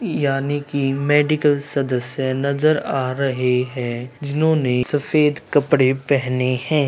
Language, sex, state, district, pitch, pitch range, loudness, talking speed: Hindi, male, Bihar, Gaya, 140 Hz, 130-145 Hz, -19 LUFS, 120 wpm